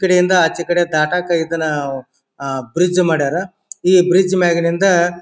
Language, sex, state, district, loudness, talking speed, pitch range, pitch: Kannada, male, Karnataka, Bijapur, -16 LUFS, 140 wpm, 160-180 Hz, 175 Hz